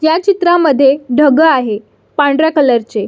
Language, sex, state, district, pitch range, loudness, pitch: Marathi, female, Maharashtra, Solapur, 255-320 Hz, -11 LUFS, 290 Hz